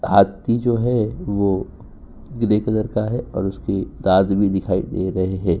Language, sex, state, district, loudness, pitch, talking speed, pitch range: Hindi, male, Uttar Pradesh, Jyotiba Phule Nagar, -20 LUFS, 100 Hz, 170 wpm, 95-115 Hz